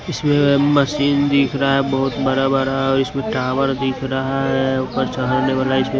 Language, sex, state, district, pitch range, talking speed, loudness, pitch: Hindi, male, Punjab, Fazilka, 135-140 Hz, 190 wpm, -18 LUFS, 135 Hz